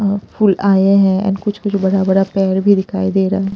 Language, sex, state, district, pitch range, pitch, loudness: Hindi, female, Punjab, Pathankot, 190-200 Hz, 195 Hz, -14 LUFS